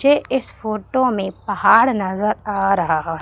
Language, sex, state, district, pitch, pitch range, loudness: Hindi, female, Madhya Pradesh, Umaria, 210 Hz, 195-255 Hz, -18 LUFS